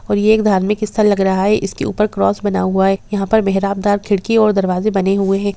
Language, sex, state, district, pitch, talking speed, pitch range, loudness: Hindi, female, Bihar, Gopalganj, 200 Hz, 225 wpm, 195-210 Hz, -15 LUFS